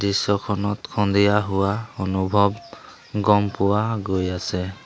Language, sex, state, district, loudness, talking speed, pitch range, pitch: Assamese, male, Assam, Sonitpur, -22 LUFS, 100 wpm, 95-105 Hz, 100 Hz